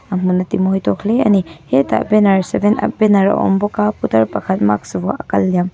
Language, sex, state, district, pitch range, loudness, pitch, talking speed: Mizo, female, Mizoram, Aizawl, 165-205 Hz, -15 LUFS, 190 Hz, 250 wpm